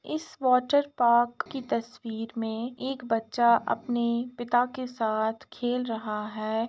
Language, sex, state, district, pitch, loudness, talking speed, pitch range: Hindi, female, Uttar Pradesh, Jalaun, 240 Hz, -28 LUFS, 125 wpm, 225-255 Hz